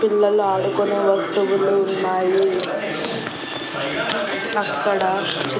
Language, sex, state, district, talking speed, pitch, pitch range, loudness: Telugu, female, Andhra Pradesh, Annamaya, 65 wpm, 195 Hz, 190-205 Hz, -20 LUFS